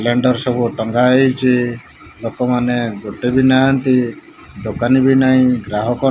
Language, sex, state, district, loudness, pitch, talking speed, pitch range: Odia, male, Odisha, Malkangiri, -15 LUFS, 125 Hz, 100 wpm, 115-130 Hz